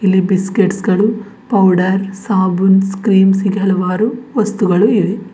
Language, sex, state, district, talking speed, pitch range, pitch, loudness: Kannada, female, Karnataka, Bidar, 110 wpm, 190-210 Hz, 195 Hz, -14 LUFS